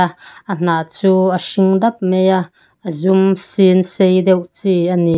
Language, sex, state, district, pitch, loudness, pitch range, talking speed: Mizo, female, Mizoram, Aizawl, 185 Hz, -14 LUFS, 180-190 Hz, 195 wpm